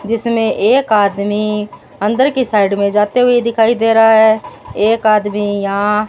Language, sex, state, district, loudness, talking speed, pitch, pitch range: Hindi, female, Rajasthan, Bikaner, -13 LUFS, 165 wpm, 215 Hz, 205-230 Hz